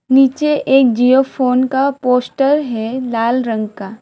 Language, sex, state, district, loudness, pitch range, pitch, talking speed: Hindi, female, West Bengal, Alipurduar, -15 LUFS, 235-270 Hz, 255 Hz, 150 wpm